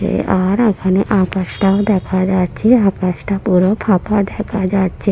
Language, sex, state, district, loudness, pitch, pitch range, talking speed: Bengali, female, West Bengal, Purulia, -15 LUFS, 195 Hz, 185-205 Hz, 130 wpm